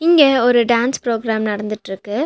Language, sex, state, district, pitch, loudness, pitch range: Tamil, female, Tamil Nadu, Nilgiris, 235 Hz, -16 LUFS, 210-245 Hz